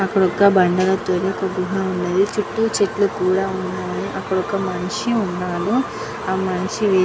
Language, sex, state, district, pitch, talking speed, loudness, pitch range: Telugu, female, Andhra Pradesh, Guntur, 190 Hz, 155 wpm, -20 LUFS, 185-200 Hz